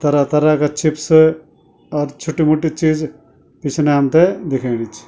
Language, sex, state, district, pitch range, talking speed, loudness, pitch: Garhwali, male, Uttarakhand, Tehri Garhwal, 145-160 Hz, 140 wpm, -16 LUFS, 155 Hz